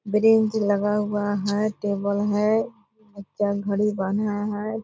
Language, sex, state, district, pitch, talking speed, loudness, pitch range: Hindi, female, Bihar, Purnia, 210 Hz, 85 wpm, -23 LUFS, 205-215 Hz